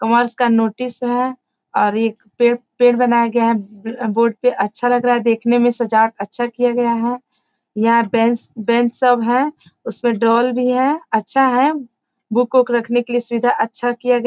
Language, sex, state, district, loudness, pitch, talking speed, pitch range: Hindi, female, Bihar, Gopalganj, -17 LUFS, 240 Hz, 190 wpm, 230-245 Hz